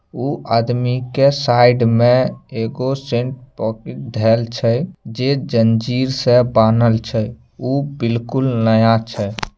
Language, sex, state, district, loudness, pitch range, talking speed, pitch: Maithili, male, Bihar, Samastipur, -17 LUFS, 115-130 Hz, 125 wpm, 120 Hz